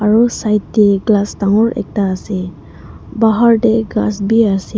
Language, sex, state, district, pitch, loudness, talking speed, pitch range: Nagamese, female, Nagaland, Dimapur, 210 Hz, -14 LUFS, 150 wpm, 200-225 Hz